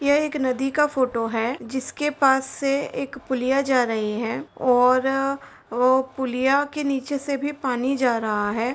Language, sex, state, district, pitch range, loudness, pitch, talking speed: Hindi, female, Uttar Pradesh, Jalaun, 250-275 Hz, -23 LUFS, 265 Hz, 170 wpm